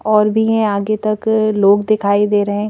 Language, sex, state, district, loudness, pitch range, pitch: Hindi, female, Madhya Pradesh, Bhopal, -15 LUFS, 205-215 Hz, 215 Hz